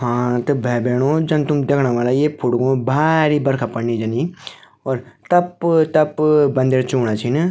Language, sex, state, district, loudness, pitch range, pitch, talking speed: Garhwali, female, Uttarakhand, Tehri Garhwal, -18 LUFS, 125-155 Hz, 135 Hz, 160 wpm